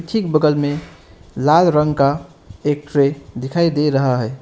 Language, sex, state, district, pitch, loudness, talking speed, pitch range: Hindi, male, West Bengal, Alipurduar, 145 Hz, -17 LUFS, 165 wpm, 140-155 Hz